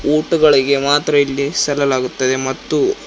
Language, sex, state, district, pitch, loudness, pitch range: Kannada, male, Karnataka, Koppal, 140 Hz, -15 LUFS, 135-150 Hz